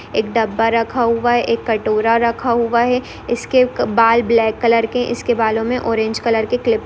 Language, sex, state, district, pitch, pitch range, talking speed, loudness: Hindi, female, Bihar, East Champaran, 230 Hz, 225-240 Hz, 190 wpm, -16 LUFS